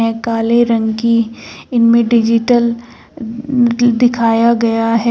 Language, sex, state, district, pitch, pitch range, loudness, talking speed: Hindi, female, Uttar Pradesh, Shamli, 235 Hz, 230-235 Hz, -13 LUFS, 105 wpm